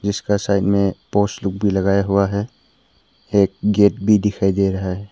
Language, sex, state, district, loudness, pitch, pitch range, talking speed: Hindi, male, Arunachal Pradesh, Papum Pare, -18 LUFS, 100 Hz, 95-105 Hz, 190 wpm